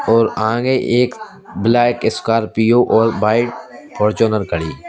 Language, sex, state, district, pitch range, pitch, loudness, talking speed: Hindi, male, Madhya Pradesh, Bhopal, 110-120 Hz, 115 Hz, -16 LUFS, 125 wpm